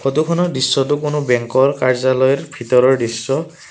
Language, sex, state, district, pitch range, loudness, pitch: Assamese, male, Assam, Kamrup Metropolitan, 130-145 Hz, -16 LUFS, 130 Hz